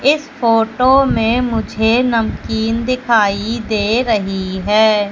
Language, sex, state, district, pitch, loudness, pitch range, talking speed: Hindi, female, Madhya Pradesh, Katni, 225 Hz, -15 LUFS, 215-245 Hz, 105 wpm